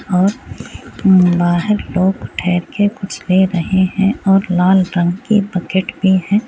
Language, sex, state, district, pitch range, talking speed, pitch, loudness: Hindi, female, Bihar, Muzaffarpur, 180-200 Hz, 160 wpm, 190 Hz, -15 LUFS